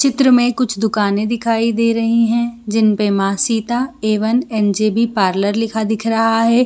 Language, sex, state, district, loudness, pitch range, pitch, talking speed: Hindi, female, Jharkhand, Sahebganj, -16 LUFS, 215-235 Hz, 225 Hz, 145 wpm